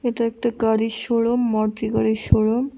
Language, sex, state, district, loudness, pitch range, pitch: Bengali, female, Tripura, West Tripura, -21 LUFS, 215-235 Hz, 225 Hz